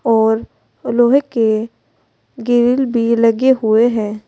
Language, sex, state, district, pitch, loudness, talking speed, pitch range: Hindi, female, Uttar Pradesh, Saharanpur, 235 Hz, -14 LUFS, 110 wpm, 220-245 Hz